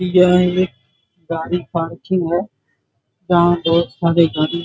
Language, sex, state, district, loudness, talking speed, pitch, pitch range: Hindi, male, Bihar, Muzaffarpur, -17 LUFS, 130 wpm, 170 Hz, 160-180 Hz